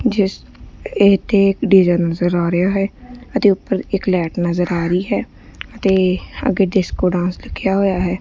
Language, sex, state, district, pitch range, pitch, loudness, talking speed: Punjabi, female, Punjab, Kapurthala, 175-200 Hz, 190 Hz, -17 LUFS, 175 wpm